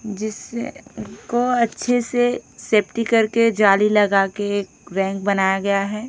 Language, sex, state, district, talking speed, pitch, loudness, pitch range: Hindi, female, Odisha, Khordha, 130 wpm, 215 Hz, -19 LUFS, 200-235 Hz